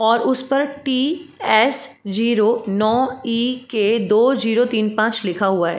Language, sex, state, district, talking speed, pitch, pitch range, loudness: Hindi, female, Uttar Pradesh, Jalaun, 165 wpm, 230 Hz, 215-260 Hz, -18 LUFS